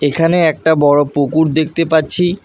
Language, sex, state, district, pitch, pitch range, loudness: Bengali, male, West Bengal, Alipurduar, 160 Hz, 145-165 Hz, -13 LUFS